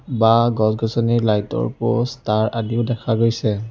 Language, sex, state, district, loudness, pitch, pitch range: Assamese, male, Assam, Sonitpur, -19 LUFS, 115 Hz, 110-120 Hz